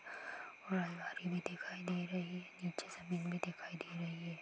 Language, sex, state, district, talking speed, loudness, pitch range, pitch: Hindi, female, Bihar, Gopalganj, 150 wpm, -44 LUFS, 175-180 Hz, 180 Hz